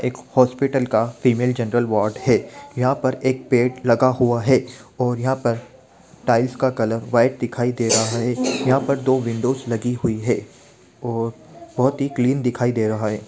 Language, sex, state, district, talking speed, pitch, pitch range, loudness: Hindi, male, Bihar, Sitamarhi, 185 wpm, 125 Hz, 115-130 Hz, -20 LUFS